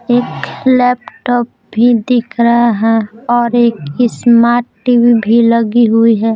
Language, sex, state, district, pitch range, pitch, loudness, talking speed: Hindi, female, Bihar, Patna, 230-245 Hz, 235 Hz, -12 LUFS, 130 wpm